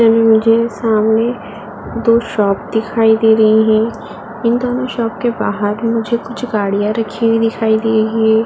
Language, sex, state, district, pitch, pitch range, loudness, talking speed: Hindi, female, Uttar Pradesh, Muzaffarnagar, 225 Hz, 220-230 Hz, -14 LUFS, 155 wpm